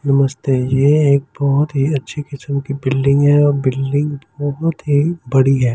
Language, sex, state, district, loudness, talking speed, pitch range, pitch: Hindi, male, Delhi, New Delhi, -16 LUFS, 175 wpm, 135-145 Hz, 140 Hz